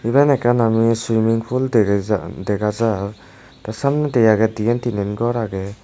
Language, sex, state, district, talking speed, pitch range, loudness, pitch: Chakma, male, Tripura, West Tripura, 165 wpm, 105-120 Hz, -18 LUFS, 110 Hz